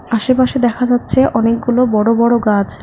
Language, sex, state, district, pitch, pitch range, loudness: Bengali, female, West Bengal, Alipurduar, 240 Hz, 225-250 Hz, -14 LUFS